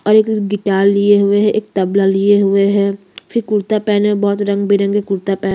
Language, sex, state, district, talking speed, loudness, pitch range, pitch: Hindi, female, Chhattisgarh, Kabirdham, 215 wpm, -14 LUFS, 200-205 Hz, 200 Hz